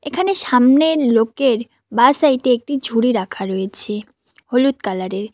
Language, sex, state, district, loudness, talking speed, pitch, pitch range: Bengali, female, West Bengal, Cooch Behar, -16 LUFS, 125 wpm, 245 Hz, 215-275 Hz